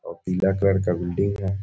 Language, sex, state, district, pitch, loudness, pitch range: Hindi, male, Bihar, Muzaffarpur, 95 Hz, -23 LUFS, 90-100 Hz